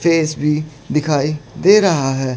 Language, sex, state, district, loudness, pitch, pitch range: Hindi, male, Chandigarh, Chandigarh, -16 LUFS, 150 Hz, 145-165 Hz